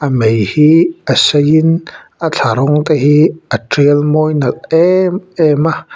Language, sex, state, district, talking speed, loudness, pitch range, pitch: Mizo, male, Mizoram, Aizawl, 130 wpm, -11 LUFS, 145-165 Hz, 155 Hz